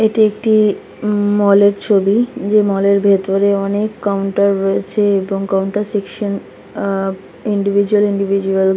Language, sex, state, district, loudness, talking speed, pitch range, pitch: Bengali, female, West Bengal, Kolkata, -15 LUFS, 135 wpm, 195-210 Hz, 200 Hz